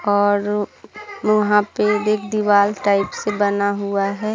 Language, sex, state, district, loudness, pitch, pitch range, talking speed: Hindi, female, Bihar, Saharsa, -18 LUFS, 205 Hz, 200-210 Hz, 140 wpm